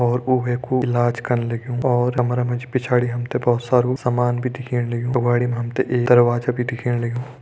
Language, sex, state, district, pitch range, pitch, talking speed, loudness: Hindi, male, Uttarakhand, Tehri Garhwal, 120-125 Hz, 125 Hz, 235 wpm, -20 LUFS